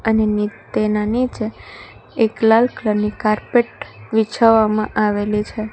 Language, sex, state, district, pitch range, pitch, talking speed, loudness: Gujarati, female, Gujarat, Valsad, 210-225 Hz, 220 Hz, 115 wpm, -18 LUFS